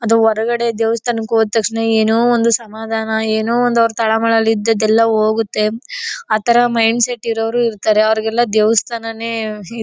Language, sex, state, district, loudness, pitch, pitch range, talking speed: Kannada, female, Karnataka, Chamarajanagar, -15 LUFS, 225 Hz, 220-230 Hz, 140 wpm